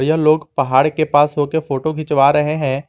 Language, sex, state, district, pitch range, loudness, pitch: Hindi, male, Jharkhand, Garhwa, 140-155 Hz, -16 LUFS, 150 Hz